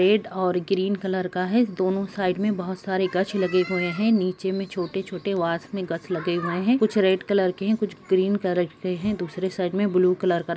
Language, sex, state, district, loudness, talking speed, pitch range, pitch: Hindi, female, Jharkhand, Sahebganj, -24 LUFS, 240 wpm, 180-195 Hz, 185 Hz